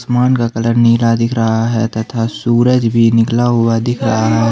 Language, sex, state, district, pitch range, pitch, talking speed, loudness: Hindi, male, Jharkhand, Ranchi, 115-120 Hz, 115 Hz, 200 wpm, -13 LUFS